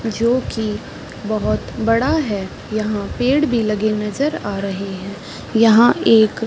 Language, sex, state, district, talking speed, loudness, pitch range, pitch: Hindi, female, Bihar, Saran, 160 wpm, -18 LUFS, 205-230 Hz, 215 Hz